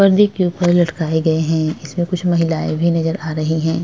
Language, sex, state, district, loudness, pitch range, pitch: Hindi, female, Maharashtra, Chandrapur, -17 LUFS, 160-175 Hz, 165 Hz